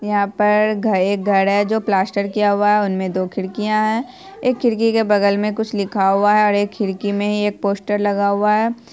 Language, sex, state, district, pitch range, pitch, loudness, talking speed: Hindi, female, Bihar, Purnia, 200-215 Hz, 205 Hz, -18 LUFS, 270 wpm